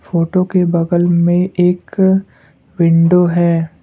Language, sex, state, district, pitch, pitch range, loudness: Hindi, male, Assam, Kamrup Metropolitan, 175 Hz, 170-180 Hz, -13 LUFS